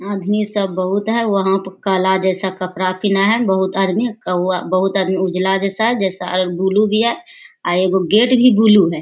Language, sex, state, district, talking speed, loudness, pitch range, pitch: Hindi, female, Bihar, Bhagalpur, 195 wpm, -16 LUFS, 185-210 Hz, 195 Hz